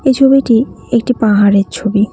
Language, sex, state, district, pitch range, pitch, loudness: Bengali, female, West Bengal, Cooch Behar, 210-265 Hz, 230 Hz, -12 LUFS